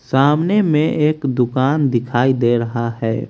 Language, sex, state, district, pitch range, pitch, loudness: Hindi, male, Haryana, Rohtak, 120-150 Hz, 130 Hz, -17 LUFS